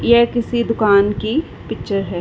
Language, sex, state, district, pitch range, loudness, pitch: Hindi, female, Uttar Pradesh, Varanasi, 200-235 Hz, -17 LUFS, 230 Hz